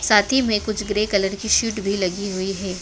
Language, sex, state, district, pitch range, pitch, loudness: Hindi, female, Madhya Pradesh, Dhar, 195-215 Hz, 205 Hz, -21 LUFS